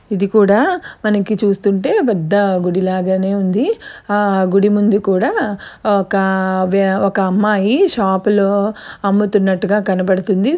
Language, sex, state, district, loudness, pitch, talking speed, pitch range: Telugu, female, Andhra Pradesh, Anantapur, -15 LUFS, 200 Hz, 100 wpm, 190-210 Hz